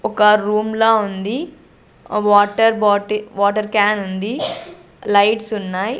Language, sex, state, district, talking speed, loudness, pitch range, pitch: Telugu, female, Andhra Pradesh, Sri Satya Sai, 120 wpm, -17 LUFS, 205-220 Hz, 210 Hz